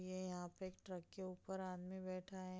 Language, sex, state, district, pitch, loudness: Hindi, female, Bihar, Gopalganj, 185 Hz, -50 LUFS